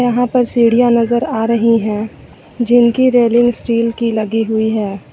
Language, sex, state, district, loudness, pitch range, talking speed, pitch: Hindi, female, Uttar Pradesh, Lucknow, -13 LUFS, 220-240 Hz, 165 wpm, 230 Hz